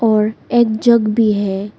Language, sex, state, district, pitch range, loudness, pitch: Hindi, female, Arunachal Pradesh, Lower Dibang Valley, 210-230 Hz, -15 LUFS, 220 Hz